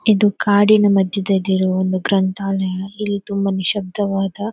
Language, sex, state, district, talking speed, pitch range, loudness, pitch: Kannada, female, Karnataka, Dakshina Kannada, 105 wpm, 190-205 Hz, -18 LUFS, 195 Hz